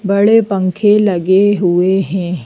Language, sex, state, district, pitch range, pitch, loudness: Hindi, female, Madhya Pradesh, Bhopal, 185-205 Hz, 195 Hz, -12 LUFS